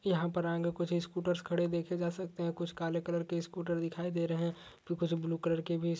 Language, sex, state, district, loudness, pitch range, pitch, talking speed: Hindi, male, Uttar Pradesh, Etah, -35 LUFS, 170-175 Hz, 170 Hz, 250 wpm